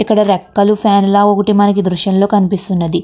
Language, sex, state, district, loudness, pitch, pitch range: Telugu, female, Andhra Pradesh, Krishna, -12 LUFS, 200 Hz, 195-205 Hz